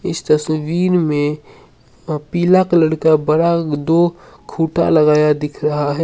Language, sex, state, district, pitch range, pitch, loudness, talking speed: Hindi, male, Assam, Sonitpur, 150-170 Hz, 155 Hz, -16 LUFS, 130 wpm